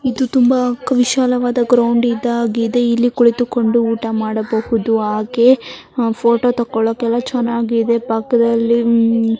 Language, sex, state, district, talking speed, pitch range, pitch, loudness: Kannada, male, Karnataka, Mysore, 100 wpm, 230-245 Hz, 235 Hz, -15 LUFS